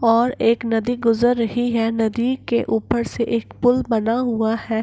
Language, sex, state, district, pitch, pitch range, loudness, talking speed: Hindi, female, Bihar, Gopalganj, 230 Hz, 225-240 Hz, -20 LUFS, 185 wpm